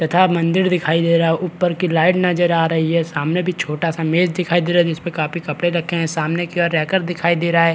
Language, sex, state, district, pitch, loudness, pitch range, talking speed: Hindi, male, Chhattisgarh, Rajnandgaon, 170 Hz, -18 LUFS, 165-175 Hz, 280 wpm